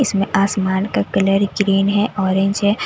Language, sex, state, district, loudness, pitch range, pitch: Hindi, female, Delhi, New Delhi, -17 LUFS, 195-205 Hz, 195 Hz